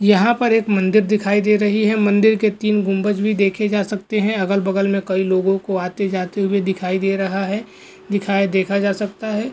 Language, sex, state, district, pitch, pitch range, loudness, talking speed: Hindi, male, Goa, North and South Goa, 200 Hz, 195-210 Hz, -18 LUFS, 220 wpm